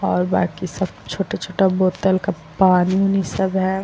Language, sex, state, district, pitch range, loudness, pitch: Hindi, female, Bihar, Vaishali, 180-195 Hz, -19 LUFS, 190 Hz